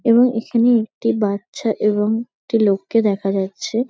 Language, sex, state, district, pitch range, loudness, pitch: Bengali, female, West Bengal, North 24 Parganas, 205-235 Hz, -19 LUFS, 225 Hz